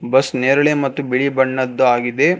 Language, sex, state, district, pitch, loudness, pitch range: Kannada, male, Karnataka, Bangalore, 130 Hz, -16 LUFS, 130-140 Hz